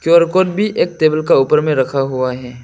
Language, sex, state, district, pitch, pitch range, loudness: Hindi, male, Arunachal Pradesh, Lower Dibang Valley, 155 Hz, 130-170 Hz, -14 LUFS